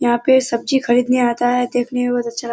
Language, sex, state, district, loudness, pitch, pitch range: Hindi, female, Bihar, Kishanganj, -17 LUFS, 245 Hz, 240-250 Hz